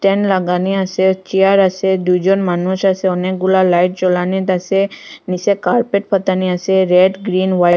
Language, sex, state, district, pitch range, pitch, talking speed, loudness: Bengali, female, Assam, Hailakandi, 180-195 Hz, 190 Hz, 155 wpm, -15 LUFS